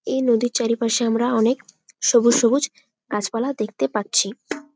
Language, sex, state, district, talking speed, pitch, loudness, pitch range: Bengali, female, West Bengal, Jalpaiguri, 125 wpm, 235 Hz, -20 LUFS, 225-250 Hz